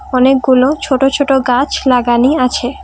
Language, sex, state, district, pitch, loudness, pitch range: Bengali, female, Assam, Kamrup Metropolitan, 265 Hz, -12 LUFS, 255-270 Hz